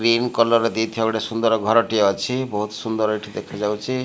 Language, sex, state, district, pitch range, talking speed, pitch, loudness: Odia, male, Odisha, Malkangiri, 105-115 Hz, 175 wpm, 110 Hz, -21 LUFS